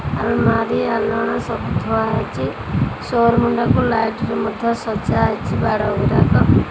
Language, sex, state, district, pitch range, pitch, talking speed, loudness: Odia, female, Odisha, Khordha, 225-235 Hz, 235 Hz, 145 wpm, -18 LUFS